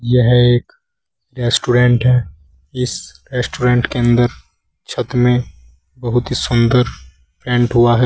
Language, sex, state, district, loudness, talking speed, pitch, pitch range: Hindi, male, Uttar Pradesh, Saharanpur, -15 LUFS, 120 wpm, 120 Hz, 120-125 Hz